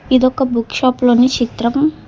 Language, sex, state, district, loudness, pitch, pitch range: Telugu, female, Telangana, Hyderabad, -14 LUFS, 255 Hz, 240-260 Hz